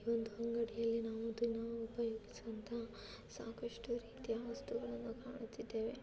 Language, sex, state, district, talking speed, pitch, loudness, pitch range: Kannada, female, Karnataka, Chamarajanagar, 100 wpm, 230 Hz, -43 LUFS, 225-235 Hz